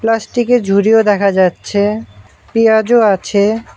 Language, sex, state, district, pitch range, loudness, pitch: Bengali, male, West Bengal, Alipurduar, 200-225 Hz, -12 LUFS, 215 Hz